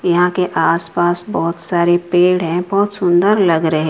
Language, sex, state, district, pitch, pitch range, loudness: Hindi, female, Odisha, Sambalpur, 175 Hz, 170-180 Hz, -15 LUFS